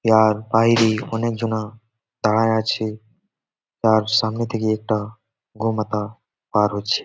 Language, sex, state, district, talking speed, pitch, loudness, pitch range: Bengali, male, West Bengal, Jalpaiguri, 110 wpm, 110 Hz, -20 LUFS, 110-115 Hz